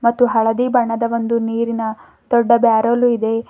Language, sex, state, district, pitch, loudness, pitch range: Kannada, female, Karnataka, Bidar, 235 Hz, -16 LUFS, 225-235 Hz